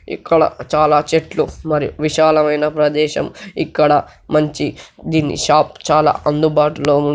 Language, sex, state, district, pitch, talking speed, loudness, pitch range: Telugu, male, Telangana, Nalgonda, 150 Hz, 110 wpm, -16 LUFS, 150-155 Hz